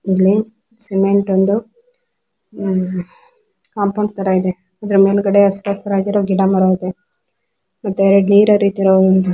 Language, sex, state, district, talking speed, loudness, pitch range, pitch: Kannada, female, Karnataka, Raichur, 120 wpm, -15 LUFS, 190-205 Hz, 200 Hz